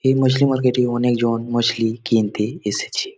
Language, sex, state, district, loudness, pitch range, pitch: Bengali, male, West Bengal, Jalpaiguri, -19 LUFS, 115-130 Hz, 120 Hz